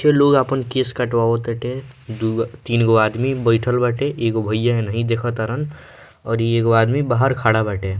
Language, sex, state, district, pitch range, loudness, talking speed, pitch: Bhojpuri, male, Bihar, Muzaffarpur, 115-130 Hz, -19 LUFS, 175 wpm, 115 Hz